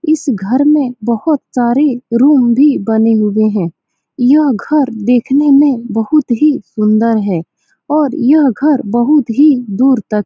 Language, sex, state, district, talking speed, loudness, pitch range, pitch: Hindi, female, Bihar, Saran, 150 wpm, -12 LUFS, 225-295 Hz, 255 Hz